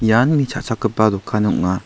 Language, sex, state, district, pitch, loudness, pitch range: Garo, male, Meghalaya, South Garo Hills, 110 Hz, -18 LUFS, 105-120 Hz